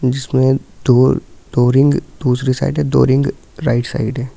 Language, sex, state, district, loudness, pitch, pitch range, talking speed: Hindi, male, Delhi, New Delhi, -15 LUFS, 130 Hz, 125-135 Hz, 165 wpm